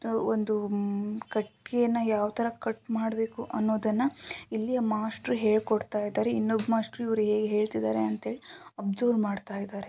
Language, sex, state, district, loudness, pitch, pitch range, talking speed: Kannada, female, Karnataka, Shimoga, -29 LUFS, 220 Hz, 210-225 Hz, 115 wpm